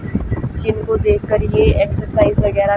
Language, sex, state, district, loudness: Hindi, female, Haryana, Jhajjar, -16 LUFS